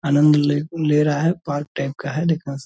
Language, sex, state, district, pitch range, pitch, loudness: Hindi, male, Bihar, Purnia, 145-155 Hz, 145 Hz, -20 LUFS